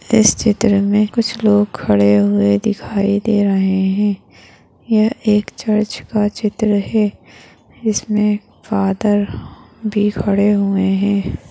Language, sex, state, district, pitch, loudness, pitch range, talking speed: Hindi, female, Maharashtra, Solapur, 205 Hz, -16 LUFS, 200-215 Hz, 120 wpm